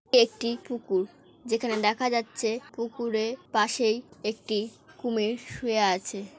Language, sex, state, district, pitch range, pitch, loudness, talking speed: Bengali, female, West Bengal, North 24 Parganas, 215-240 Hz, 225 Hz, -28 LUFS, 115 wpm